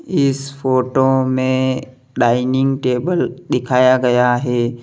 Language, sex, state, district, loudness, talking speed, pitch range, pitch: Hindi, male, Uttar Pradesh, Lalitpur, -16 LUFS, 100 wpm, 125-130 Hz, 130 Hz